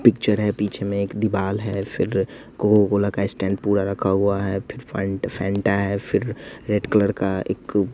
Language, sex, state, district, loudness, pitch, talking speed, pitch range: Hindi, male, Bihar, West Champaran, -22 LUFS, 100 Hz, 180 wpm, 95-105 Hz